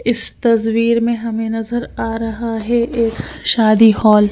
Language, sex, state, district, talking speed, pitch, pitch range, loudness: Hindi, female, Punjab, Fazilka, 165 wpm, 225 Hz, 225-235 Hz, -16 LUFS